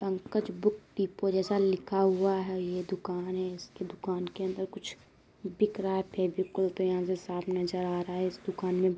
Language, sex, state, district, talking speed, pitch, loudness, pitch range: Hindi, female, Uttar Pradesh, Deoria, 205 wpm, 190 Hz, -32 LUFS, 180-195 Hz